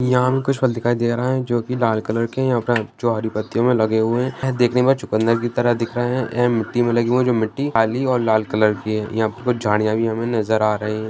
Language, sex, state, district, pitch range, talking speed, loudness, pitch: Hindi, male, Bihar, Jamui, 110-125 Hz, 295 wpm, -19 LUFS, 120 Hz